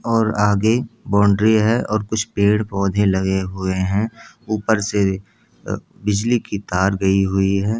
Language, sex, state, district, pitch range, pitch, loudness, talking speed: Hindi, male, Bihar, Jamui, 95-110 Hz, 105 Hz, -19 LUFS, 140 wpm